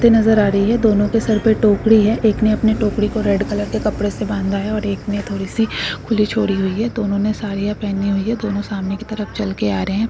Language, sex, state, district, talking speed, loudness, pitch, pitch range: Hindi, female, Andhra Pradesh, Guntur, 275 wpm, -18 LUFS, 210 Hz, 200-220 Hz